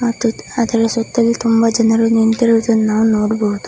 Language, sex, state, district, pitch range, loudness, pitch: Kannada, female, Karnataka, Dakshina Kannada, 225-230 Hz, -14 LUFS, 225 Hz